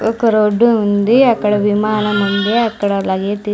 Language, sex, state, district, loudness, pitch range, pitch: Telugu, female, Andhra Pradesh, Sri Satya Sai, -14 LUFS, 205-225 Hz, 210 Hz